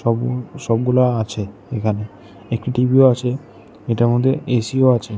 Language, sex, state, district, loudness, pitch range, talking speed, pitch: Bengali, male, Tripura, West Tripura, -18 LUFS, 110-125 Hz, 150 wpm, 120 Hz